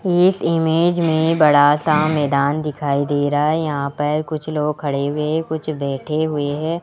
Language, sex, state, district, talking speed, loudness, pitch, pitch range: Hindi, male, Rajasthan, Jaipur, 175 wpm, -18 LUFS, 150 Hz, 145-160 Hz